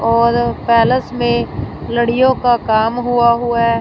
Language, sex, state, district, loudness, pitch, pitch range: Hindi, female, Punjab, Fazilka, -14 LUFS, 235 Hz, 230-245 Hz